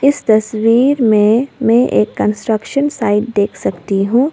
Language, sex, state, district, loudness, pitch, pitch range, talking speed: Hindi, female, Arunachal Pradesh, Lower Dibang Valley, -14 LUFS, 225 Hz, 210-250 Hz, 140 wpm